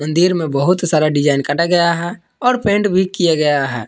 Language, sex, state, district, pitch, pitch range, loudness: Hindi, male, Jharkhand, Palamu, 170 Hz, 150-180 Hz, -15 LUFS